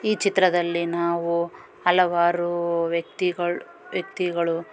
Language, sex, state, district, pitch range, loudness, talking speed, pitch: Kannada, female, Karnataka, Gulbarga, 170-180 Hz, -23 LUFS, 90 wpm, 175 Hz